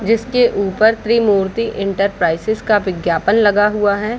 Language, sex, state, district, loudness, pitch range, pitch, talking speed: Hindi, female, Bihar, Darbhanga, -15 LUFS, 195-225 Hz, 210 Hz, 115 wpm